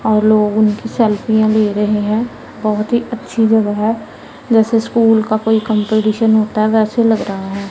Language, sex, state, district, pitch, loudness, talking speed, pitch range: Hindi, female, Punjab, Pathankot, 220 Hz, -14 LUFS, 180 wpm, 215-225 Hz